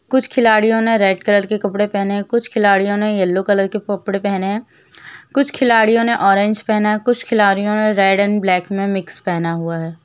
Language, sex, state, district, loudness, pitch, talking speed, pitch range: Hindi, female, Jharkhand, Jamtara, -16 LUFS, 205 Hz, 205 wpm, 195-220 Hz